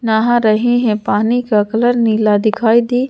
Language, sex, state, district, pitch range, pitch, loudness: Hindi, female, Madhya Pradesh, Bhopal, 215-240 Hz, 225 Hz, -14 LUFS